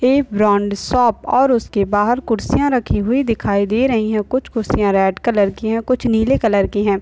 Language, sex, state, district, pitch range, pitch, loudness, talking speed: Hindi, male, Bihar, Madhepura, 205-250 Hz, 225 Hz, -17 LUFS, 205 wpm